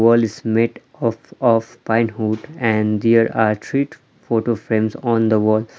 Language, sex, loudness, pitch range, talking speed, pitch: English, male, -19 LUFS, 110-115 Hz, 175 wpm, 115 Hz